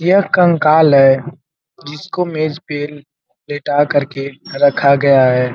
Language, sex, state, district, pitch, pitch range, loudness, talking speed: Hindi, male, Uttar Pradesh, Gorakhpur, 145 Hz, 140-155 Hz, -13 LUFS, 140 wpm